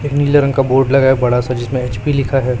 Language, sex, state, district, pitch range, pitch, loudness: Hindi, male, Chhattisgarh, Raipur, 125-140 Hz, 135 Hz, -14 LUFS